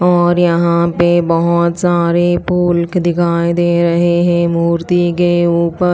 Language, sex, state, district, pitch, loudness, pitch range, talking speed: Hindi, female, Chandigarh, Chandigarh, 175 Hz, -13 LUFS, 170-175 Hz, 130 wpm